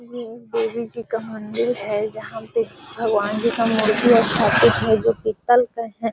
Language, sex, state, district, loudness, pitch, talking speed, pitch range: Magahi, female, Bihar, Gaya, -20 LUFS, 225 Hz, 185 wpm, 220-235 Hz